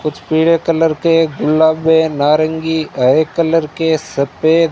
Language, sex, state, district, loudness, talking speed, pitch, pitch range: Hindi, male, Rajasthan, Bikaner, -14 LUFS, 125 wpm, 160 Hz, 155-165 Hz